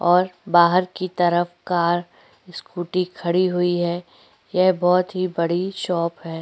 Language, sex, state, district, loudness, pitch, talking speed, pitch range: Hindi, female, Chhattisgarh, Korba, -21 LUFS, 175 Hz, 140 wpm, 175-185 Hz